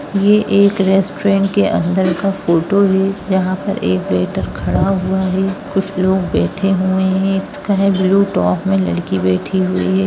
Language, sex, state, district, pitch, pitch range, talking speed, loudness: Hindi, female, Bihar, Darbhanga, 190 Hz, 165-195 Hz, 175 wpm, -15 LUFS